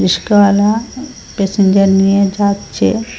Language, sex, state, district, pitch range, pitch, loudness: Bengali, female, Assam, Hailakandi, 195-215 Hz, 200 Hz, -12 LUFS